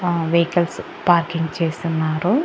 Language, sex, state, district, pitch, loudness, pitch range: Telugu, female, Andhra Pradesh, Annamaya, 170 Hz, -20 LUFS, 165-175 Hz